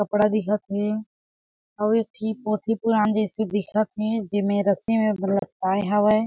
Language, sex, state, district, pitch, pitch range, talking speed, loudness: Chhattisgarhi, female, Chhattisgarh, Jashpur, 210 Hz, 205-215 Hz, 155 wpm, -24 LUFS